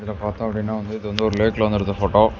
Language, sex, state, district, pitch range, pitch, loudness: Tamil, male, Tamil Nadu, Namakkal, 105-110 Hz, 105 Hz, -21 LUFS